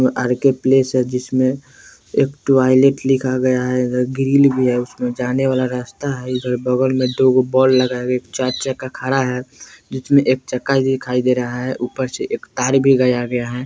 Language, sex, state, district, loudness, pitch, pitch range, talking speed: Bajjika, male, Bihar, Vaishali, -17 LUFS, 130 Hz, 125-135 Hz, 180 wpm